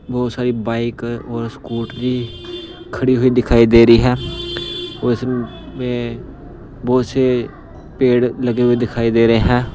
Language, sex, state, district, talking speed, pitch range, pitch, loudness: Hindi, male, Punjab, Pathankot, 135 wpm, 115-125 Hz, 120 Hz, -17 LUFS